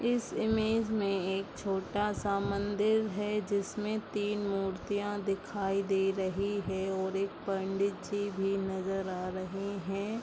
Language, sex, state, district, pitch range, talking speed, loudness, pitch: Hindi, female, Bihar, Bhagalpur, 195-205 Hz, 140 wpm, -33 LUFS, 200 Hz